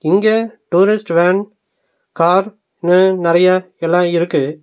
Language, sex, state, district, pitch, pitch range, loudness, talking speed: Tamil, male, Tamil Nadu, Nilgiris, 185 Hz, 170-210 Hz, -14 LUFS, 105 wpm